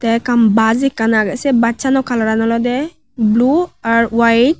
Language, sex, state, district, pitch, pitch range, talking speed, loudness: Chakma, female, Tripura, West Tripura, 235 Hz, 225-265 Hz, 145 wpm, -14 LUFS